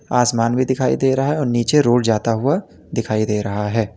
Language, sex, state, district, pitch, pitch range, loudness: Hindi, male, Uttar Pradesh, Lalitpur, 120 Hz, 110-130 Hz, -18 LUFS